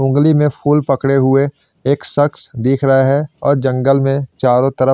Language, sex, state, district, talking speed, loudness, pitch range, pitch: Hindi, male, Chandigarh, Chandigarh, 180 wpm, -14 LUFS, 135-145 Hz, 135 Hz